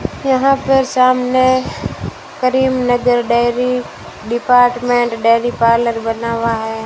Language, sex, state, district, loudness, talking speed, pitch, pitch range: Hindi, female, Rajasthan, Bikaner, -14 LUFS, 95 wpm, 245 Hz, 230-255 Hz